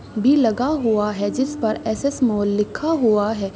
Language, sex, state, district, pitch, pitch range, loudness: Hindi, female, Uttar Pradesh, Deoria, 220 Hz, 210-270 Hz, -20 LUFS